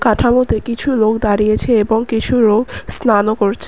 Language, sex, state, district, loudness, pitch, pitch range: Bengali, female, Assam, Kamrup Metropolitan, -14 LUFS, 220 Hz, 215-240 Hz